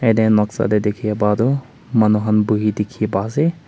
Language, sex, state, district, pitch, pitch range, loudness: Nagamese, male, Nagaland, Kohima, 110 Hz, 105-115 Hz, -18 LUFS